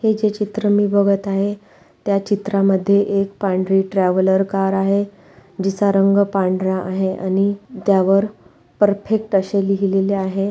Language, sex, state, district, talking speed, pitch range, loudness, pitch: Marathi, female, Maharashtra, Pune, 130 wpm, 190-200 Hz, -18 LUFS, 195 Hz